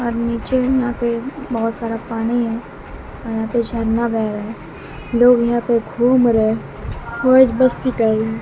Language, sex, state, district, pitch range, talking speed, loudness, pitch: Hindi, female, Bihar, West Champaran, 225-245 Hz, 165 wpm, -18 LUFS, 235 Hz